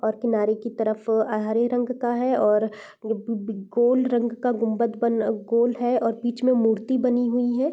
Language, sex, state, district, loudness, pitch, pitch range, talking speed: Hindi, female, Bihar, East Champaran, -23 LUFS, 235 Hz, 220-245 Hz, 195 wpm